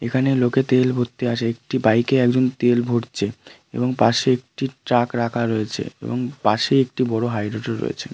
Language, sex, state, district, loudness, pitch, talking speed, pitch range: Bengali, male, West Bengal, Kolkata, -21 LUFS, 120 Hz, 170 wpm, 115-125 Hz